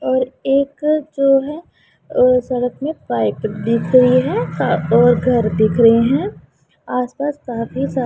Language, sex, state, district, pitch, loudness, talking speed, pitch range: Hindi, female, Punjab, Pathankot, 250 Hz, -16 LUFS, 140 wpm, 230-275 Hz